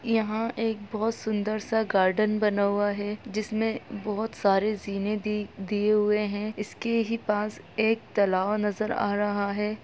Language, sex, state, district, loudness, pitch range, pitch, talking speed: Hindi, male, Bihar, Muzaffarpur, -27 LUFS, 205-220 Hz, 210 Hz, 150 wpm